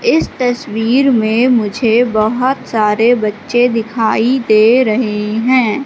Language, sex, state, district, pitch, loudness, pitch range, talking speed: Hindi, female, Madhya Pradesh, Katni, 235 Hz, -13 LUFS, 220-250 Hz, 110 wpm